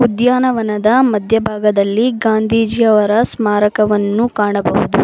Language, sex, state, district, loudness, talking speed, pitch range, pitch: Kannada, female, Karnataka, Bangalore, -14 LUFS, 60 wpm, 210-230 Hz, 220 Hz